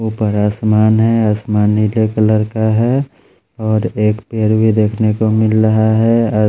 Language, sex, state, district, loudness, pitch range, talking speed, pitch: Hindi, male, Bihar, Patna, -14 LUFS, 105-110 Hz, 165 wpm, 110 Hz